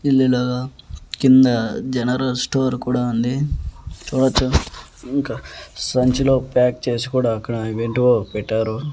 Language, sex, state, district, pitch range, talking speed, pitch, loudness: Telugu, male, Andhra Pradesh, Annamaya, 115-130 Hz, 100 wpm, 125 Hz, -19 LUFS